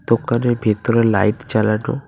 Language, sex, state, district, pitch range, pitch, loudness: Bengali, male, West Bengal, Cooch Behar, 110-120 Hz, 115 Hz, -17 LUFS